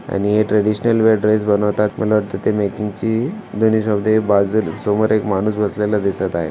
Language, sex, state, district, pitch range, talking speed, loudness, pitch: Marathi, male, Maharashtra, Aurangabad, 100-110 Hz, 165 wpm, -17 LUFS, 105 Hz